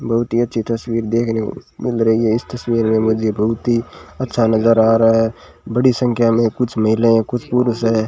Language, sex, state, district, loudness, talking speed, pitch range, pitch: Hindi, male, Rajasthan, Bikaner, -17 LUFS, 215 wpm, 110-120 Hz, 115 Hz